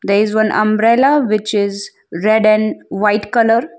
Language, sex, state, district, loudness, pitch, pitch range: English, female, Gujarat, Valsad, -14 LUFS, 215 Hz, 210-225 Hz